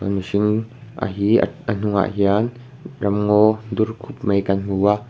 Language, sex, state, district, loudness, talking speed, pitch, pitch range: Mizo, male, Mizoram, Aizawl, -20 LUFS, 165 wpm, 105 Hz, 100-115 Hz